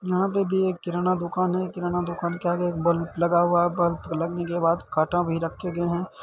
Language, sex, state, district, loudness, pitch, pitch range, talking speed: Maithili, male, Bihar, Madhepura, -25 LUFS, 175 Hz, 170-180 Hz, 250 wpm